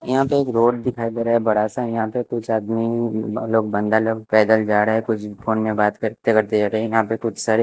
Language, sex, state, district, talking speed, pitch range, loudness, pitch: Hindi, male, Chandigarh, Chandigarh, 270 wpm, 110-115 Hz, -20 LUFS, 110 Hz